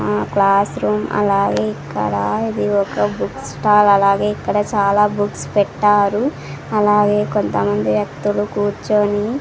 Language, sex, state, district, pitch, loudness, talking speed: Telugu, female, Andhra Pradesh, Sri Satya Sai, 200 Hz, -17 LUFS, 120 wpm